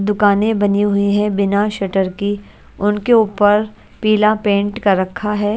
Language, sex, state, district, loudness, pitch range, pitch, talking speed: Hindi, female, Haryana, Charkhi Dadri, -16 LUFS, 200-210 Hz, 205 Hz, 150 wpm